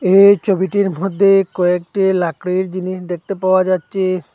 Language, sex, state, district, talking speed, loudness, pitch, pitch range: Bengali, male, Assam, Hailakandi, 125 wpm, -16 LUFS, 185 Hz, 180-195 Hz